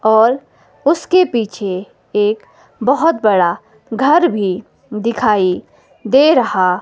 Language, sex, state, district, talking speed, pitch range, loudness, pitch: Hindi, female, Himachal Pradesh, Shimla, 95 wpm, 200-275 Hz, -15 LUFS, 220 Hz